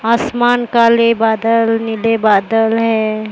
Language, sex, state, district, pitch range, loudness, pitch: Hindi, male, Maharashtra, Mumbai Suburban, 225-230 Hz, -13 LUFS, 225 Hz